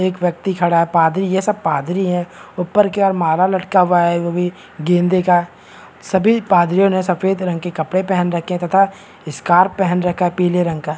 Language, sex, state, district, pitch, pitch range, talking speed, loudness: Hindi, male, Bihar, Kishanganj, 180 Hz, 175-190 Hz, 215 wpm, -16 LUFS